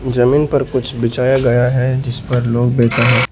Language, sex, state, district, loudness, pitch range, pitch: Hindi, male, Arunachal Pradesh, Lower Dibang Valley, -15 LUFS, 120-130 Hz, 125 Hz